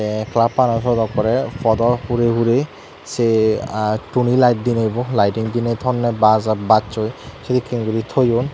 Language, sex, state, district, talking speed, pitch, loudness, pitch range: Chakma, male, Tripura, Dhalai, 145 wpm, 115 Hz, -18 LUFS, 110-120 Hz